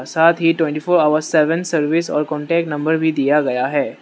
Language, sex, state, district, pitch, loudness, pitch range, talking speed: Hindi, male, Manipur, Imphal West, 155 Hz, -17 LUFS, 150-165 Hz, 210 wpm